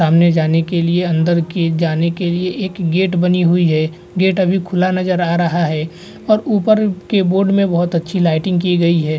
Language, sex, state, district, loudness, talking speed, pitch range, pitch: Hindi, male, Bihar, Vaishali, -15 LUFS, 210 wpm, 170-185 Hz, 175 Hz